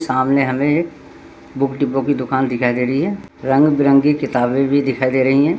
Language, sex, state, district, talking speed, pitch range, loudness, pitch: Hindi, male, Uttarakhand, Tehri Garhwal, 195 wpm, 130-140 Hz, -17 LUFS, 135 Hz